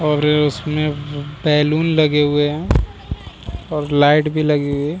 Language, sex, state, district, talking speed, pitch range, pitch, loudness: Hindi, male, Bihar, Vaishali, 145 wpm, 145-155 Hz, 150 Hz, -17 LUFS